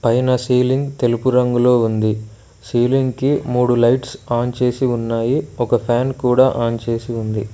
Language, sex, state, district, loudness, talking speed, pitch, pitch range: Telugu, male, Telangana, Mahabubabad, -17 LUFS, 145 wpm, 120 Hz, 115-130 Hz